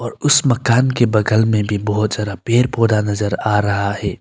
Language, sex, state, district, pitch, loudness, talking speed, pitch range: Hindi, male, Arunachal Pradesh, Longding, 110 Hz, -16 LUFS, 200 wpm, 105-120 Hz